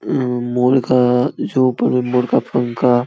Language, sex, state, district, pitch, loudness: Hindi, male, Bihar, Samastipur, 125 Hz, -16 LUFS